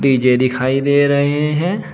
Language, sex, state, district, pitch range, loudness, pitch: Hindi, male, Uttar Pradesh, Shamli, 130-145 Hz, -15 LUFS, 140 Hz